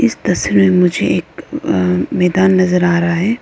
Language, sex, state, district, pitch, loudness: Hindi, female, Arunachal Pradesh, Lower Dibang Valley, 170 Hz, -14 LUFS